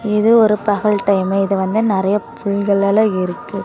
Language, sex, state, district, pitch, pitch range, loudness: Tamil, female, Tamil Nadu, Namakkal, 200 Hz, 195-210 Hz, -16 LUFS